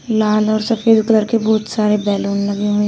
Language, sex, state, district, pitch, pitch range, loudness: Hindi, female, Uttar Pradesh, Shamli, 215 Hz, 205-220 Hz, -16 LUFS